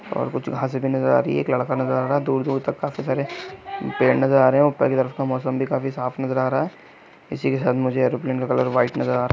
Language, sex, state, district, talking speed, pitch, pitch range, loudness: Hindi, male, Chhattisgarh, Bilaspur, 285 wpm, 130 Hz, 130-135 Hz, -22 LUFS